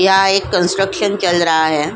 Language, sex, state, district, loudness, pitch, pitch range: Hindi, female, Goa, North and South Goa, -14 LUFS, 185 Hz, 170-195 Hz